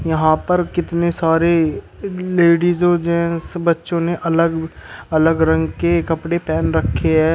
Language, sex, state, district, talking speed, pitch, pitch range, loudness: Hindi, male, Uttar Pradesh, Shamli, 140 wpm, 170 Hz, 160-170 Hz, -17 LUFS